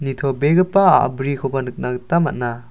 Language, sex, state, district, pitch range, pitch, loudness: Garo, male, Meghalaya, South Garo Hills, 125-160 Hz, 135 Hz, -18 LUFS